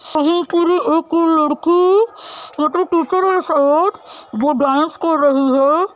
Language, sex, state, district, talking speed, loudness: Hindi, female, Uttar Pradesh, Hamirpur, 120 wpm, -15 LUFS